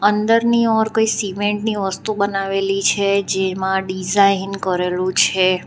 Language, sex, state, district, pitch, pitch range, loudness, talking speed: Gujarati, female, Gujarat, Valsad, 195 Hz, 190-210 Hz, -18 LUFS, 105 wpm